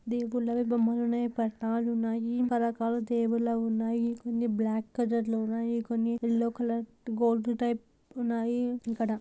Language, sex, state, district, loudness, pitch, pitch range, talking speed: Telugu, female, Andhra Pradesh, Anantapur, -30 LUFS, 235 Hz, 230-235 Hz, 105 wpm